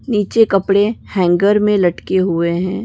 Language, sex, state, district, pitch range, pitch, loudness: Hindi, female, Maharashtra, Solapur, 180-210 Hz, 195 Hz, -15 LUFS